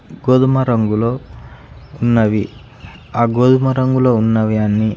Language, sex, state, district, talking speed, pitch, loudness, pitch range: Telugu, male, Andhra Pradesh, Srikakulam, 95 wpm, 120 Hz, -15 LUFS, 110-130 Hz